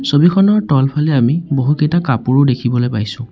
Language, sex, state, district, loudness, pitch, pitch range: Assamese, male, Assam, Sonitpur, -14 LUFS, 135 Hz, 125-150 Hz